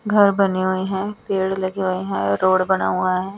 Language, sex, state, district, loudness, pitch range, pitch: Hindi, female, Bihar, West Champaran, -20 LUFS, 185-195 Hz, 190 Hz